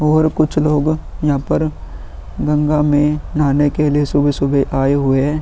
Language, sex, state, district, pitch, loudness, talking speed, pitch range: Hindi, male, Uttar Pradesh, Muzaffarnagar, 145 Hz, -16 LUFS, 165 wpm, 135-150 Hz